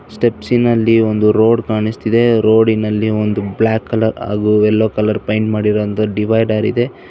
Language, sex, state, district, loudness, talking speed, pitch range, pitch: Kannada, male, Karnataka, Bangalore, -14 LUFS, 145 wpm, 105-115 Hz, 110 Hz